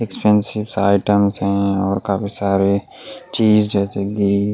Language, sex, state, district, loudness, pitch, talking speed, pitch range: Hindi, male, Delhi, New Delhi, -17 LUFS, 100 Hz, 130 wpm, 100-105 Hz